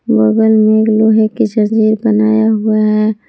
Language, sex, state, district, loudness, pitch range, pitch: Hindi, female, Jharkhand, Palamu, -11 LUFS, 215-220 Hz, 215 Hz